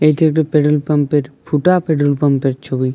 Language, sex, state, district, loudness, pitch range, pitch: Bengali, male, Jharkhand, Jamtara, -15 LUFS, 140-155 Hz, 150 Hz